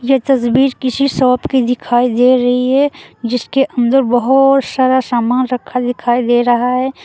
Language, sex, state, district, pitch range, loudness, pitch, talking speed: Hindi, female, Uttar Pradesh, Lucknow, 245-270 Hz, -13 LUFS, 250 Hz, 160 wpm